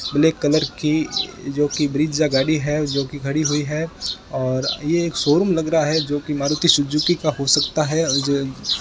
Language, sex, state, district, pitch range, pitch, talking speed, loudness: Hindi, male, Rajasthan, Bikaner, 145-155 Hz, 150 Hz, 185 wpm, -20 LUFS